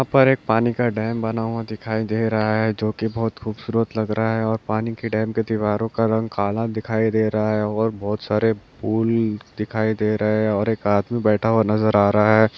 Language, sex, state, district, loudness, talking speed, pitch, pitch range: Hindi, male, Chhattisgarh, Bilaspur, -21 LUFS, 235 wpm, 110 Hz, 110-115 Hz